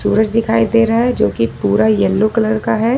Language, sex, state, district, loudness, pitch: Hindi, female, Jharkhand, Ranchi, -14 LUFS, 220 Hz